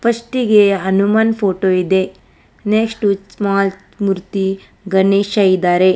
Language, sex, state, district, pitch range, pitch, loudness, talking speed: Kannada, female, Karnataka, Bangalore, 190-210 Hz, 195 Hz, -15 LUFS, 100 wpm